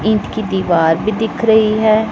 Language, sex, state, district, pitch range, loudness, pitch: Hindi, male, Punjab, Pathankot, 190-220 Hz, -14 LUFS, 215 Hz